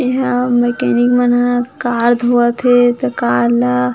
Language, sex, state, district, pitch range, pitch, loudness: Chhattisgarhi, female, Chhattisgarh, Jashpur, 240-245 Hz, 245 Hz, -13 LUFS